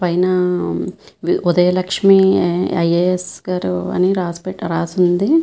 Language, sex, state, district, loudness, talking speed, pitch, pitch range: Telugu, female, Andhra Pradesh, Visakhapatnam, -16 LUFS, 135 wpm, 180 Hz, 170-185 Hz